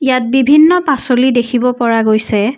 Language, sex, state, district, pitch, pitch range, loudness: Assamese, female, Assam, Kamrup Metropolitan, 250 Hz, 235-265 Hz, -11 LUFS